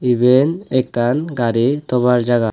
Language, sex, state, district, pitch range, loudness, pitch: Chakma, male, Tripura, West Tripura, 120-130 Hz, -16 LUFS, 125 Hz